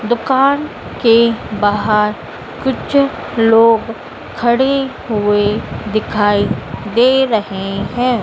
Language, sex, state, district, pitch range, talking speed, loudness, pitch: Hindi, female, Madhya Pradesh, Dhar, 210-250 Hz, 80 wpm, -15 LUFS, 225 Hz